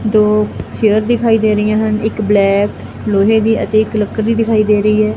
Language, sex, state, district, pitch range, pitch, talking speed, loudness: Punjabi, female, Punjab, Fazilka, 210-220 Hz, 215 Hz, 210 wpm, -13 LUFS